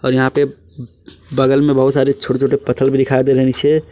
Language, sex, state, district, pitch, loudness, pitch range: Hindi, male, Jharkhand, Palamu, 135 Hz, -15 LUFS, 130-140 Hz